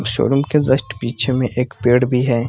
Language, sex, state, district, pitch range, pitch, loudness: Hindi, male, Bihar, Purnia, 120-130 Hz, 125 Hz, -17 LUFS